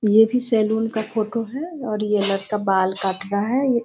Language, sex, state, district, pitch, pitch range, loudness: Hindi, female, Bihar, Sitamarhi, 220 Hz, 200-230 Hz, -21 LUFS